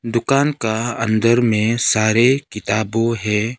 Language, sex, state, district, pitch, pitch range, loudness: Hindi, male, Arunachal Pradesh, Lower Dibang Valley, 115 Hz, 110-120 Hz, -17 LUFS